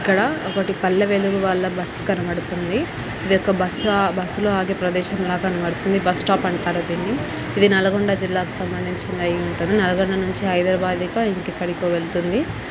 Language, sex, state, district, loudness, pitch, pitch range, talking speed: Telugu, female, Telangana, Nalgonda, -21 LUFS, 185 Hz, 180-195 Hz, 145 wpm